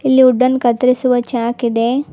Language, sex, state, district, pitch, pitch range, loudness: Kannada, female, Karnataka, Bangalore, 250 Hz, 240-255 Hz, -14 LUFS